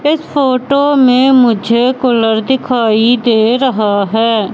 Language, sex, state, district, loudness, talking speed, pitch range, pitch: Hindi, female, Madhya Pradesh, Katni, -11 LUFS, 120 wpm, 225-265 Hz, 245 Hz